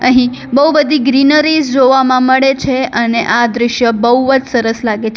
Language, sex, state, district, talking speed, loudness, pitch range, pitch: Gujarati, female, Gujarat, Valsad, 175 wpm, -11 LUFS, 235-270 Hz, 255 Hz